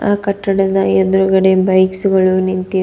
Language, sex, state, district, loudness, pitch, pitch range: Kannada, female, Karnataka, Bidar, -13 LUFS, 190 Hz, 185-195 Hz